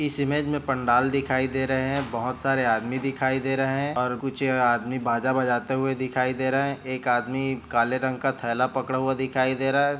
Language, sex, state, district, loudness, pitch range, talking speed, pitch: Hindi, male, Chhattisgarh, Bilaspur, -25 LUFS, 130-135 Hz, 220 wpm, 130 Hz